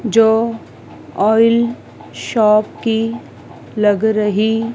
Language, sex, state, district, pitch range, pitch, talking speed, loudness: Hindi, female, Madhya Pradesh, Dhar, 215-230 Hz, 225 Hz, 75 wpm, -15 LUFS